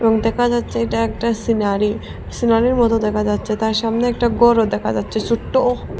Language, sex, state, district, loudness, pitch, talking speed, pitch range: Bengali, female, Assam, Hailakandi, -18 LUFS, 225 Hz, 180 wpm, 215-235 Hz